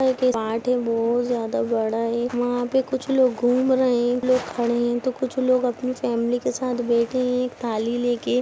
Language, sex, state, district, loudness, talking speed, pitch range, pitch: Hindi, female, Jharkhand, Jamtara, -22 LUFS, 200 wpm, 235-255 Hz, 245 Hz